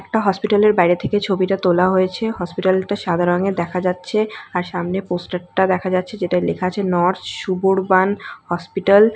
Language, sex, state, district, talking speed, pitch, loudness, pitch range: Bengali, female, West Bengal, North 24 Parganas, 170 wpm, 185 Hz, -19 LUFS, 180-195 Hz